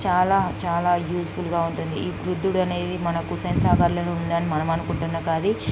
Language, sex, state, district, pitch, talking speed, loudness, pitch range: Telugu, female, Andhra Pradesh, Guntur, 175 Hz, 155 wpm, -23 LUFS, 170-180 Hz